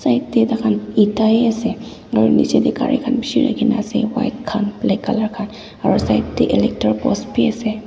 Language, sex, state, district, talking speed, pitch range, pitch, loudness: Nagamese, female, Nagaland, Dimapur, 205 wpm, 210-240 Hz, 220 Hz, -17 LUFS